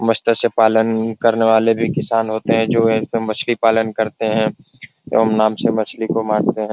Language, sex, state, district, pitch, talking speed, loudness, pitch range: Hindi, male, Bihar, Supaul, 110 Hz, 170 wpm, -17 LUFS, 110-115 Hz